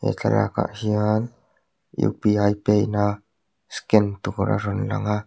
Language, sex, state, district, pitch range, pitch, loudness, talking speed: Mizo, male, Mizoram, Aizawl, 105-110 Hz, 105 Hz, -22 LUFS, 160 wpm